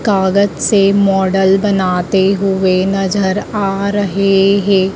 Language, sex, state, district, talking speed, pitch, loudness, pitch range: Hindi, female, Madhya Pradesh, Dhar, 110 wpm, 195 Hz, -13 LUFS, 190-200 Hz